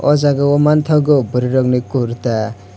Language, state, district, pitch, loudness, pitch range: Kokborok, Tripura, West Tripura, 130 Hz, -15 LUFS, 120-145 Hz